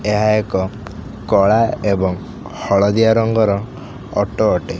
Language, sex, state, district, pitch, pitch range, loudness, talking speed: Odia, male, Odisha, Khordha, 105 Hz, 100-110 Hz, -16 LUFS, 100 wpm